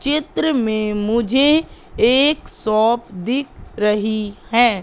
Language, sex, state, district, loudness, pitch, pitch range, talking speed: Hindi, female, Madhya Pradesh, Katni, -18 LUFS, 230 Hz, 215-275 Hz, 100 wpm